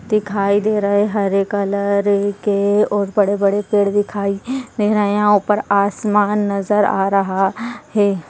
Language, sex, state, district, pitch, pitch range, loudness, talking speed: Hindi, female, Uttarakhand, Tehri Garhwal, 205 Hz, 200-210 Hz, -17 LUFS, 150 wpm